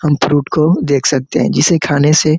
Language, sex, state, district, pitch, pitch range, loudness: Hindi, male, Chhattisgarh, Korba, 150 Hz, 140-155 Hz, -13 LUFS